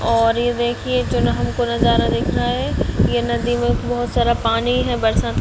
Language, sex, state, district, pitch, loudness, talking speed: Hindi, female, Chhattisgarh, Raigarh, 125 Hz, -18 LUFS, 220 wpm